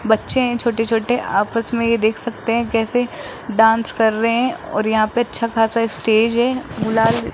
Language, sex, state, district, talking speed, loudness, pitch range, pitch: Hindi, male, Rajasthan, Jaipur, 195 wpm, -18 LUFS, 225-240 Hz, 230 Hz